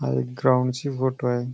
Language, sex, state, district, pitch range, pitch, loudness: Marathi, male, Maharashtra, Nagpur, 120-130 Hz, 125 Hz, -24 LUFS